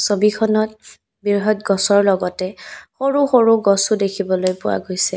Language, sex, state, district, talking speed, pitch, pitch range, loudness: Assamese, female, Assam, Kamrup Metropolitan, 115 wpm, 205 Hz, 195-215 Hz, -17 LUFS